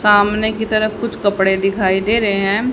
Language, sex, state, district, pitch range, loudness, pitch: Hindi, female, Haryana, Jhajjar, 195-220 Hz, -16 LUFS, 205 Hz